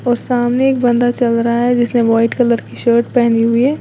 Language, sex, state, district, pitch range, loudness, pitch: Hindi, female, Uttar Pradesh, Lalitpur, 235-245 Hz, -14 LUFS, 240 Hz